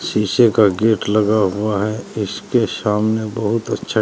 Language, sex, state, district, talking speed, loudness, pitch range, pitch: Hindi, male, Uttar Pradesh, Shamli, 150 wpm, -17 LUFS, 105-110 Hz, 105 Hz